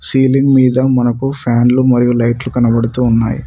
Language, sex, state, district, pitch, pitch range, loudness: Telugu, male, Telangana, Mahabubabad, 125 Hz, 120-130 Hz, -12 LUFS